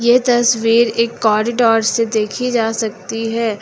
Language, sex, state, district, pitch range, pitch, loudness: Hindi, female, Uttar Pradesh, Lucknow, 225-235 Hz, 230 Hz, -15 LUFS